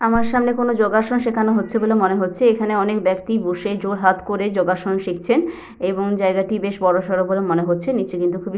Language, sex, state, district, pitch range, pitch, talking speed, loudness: Bengali, female, West Bengal, Jhargram, 185-220 Hz, 200 Hz, 215 wpm, -19 LUFS